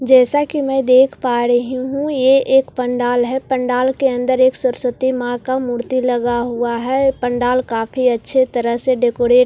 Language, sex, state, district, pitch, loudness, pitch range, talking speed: Hindi, female, Bihar, Katihar, 255 Hz, -16 LUFS, 245-260 Hz, 195 wpm